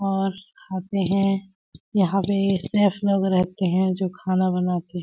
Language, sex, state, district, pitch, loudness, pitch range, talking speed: Hindi, female, Chhattisgarh, Balrampur, 190 Hz, -23 LUFS, 185-195 Hz, 145 wpm